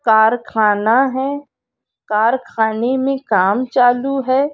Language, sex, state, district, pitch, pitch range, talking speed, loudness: Hindi, female, Bihar, Darbhanga, 245 Hz, 220-270 Hz, 90 wpm, -16 LUFS